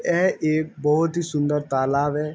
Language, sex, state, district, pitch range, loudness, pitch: Hindi, male, Uttar Pradesh, Jalaun, 145-160 Hz, -22 LUFS, 150 Hz